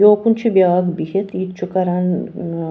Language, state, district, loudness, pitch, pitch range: Kashmiri, Punjab, Kapurthala, -18 LUFS, 185 Hz, 180-200 Hz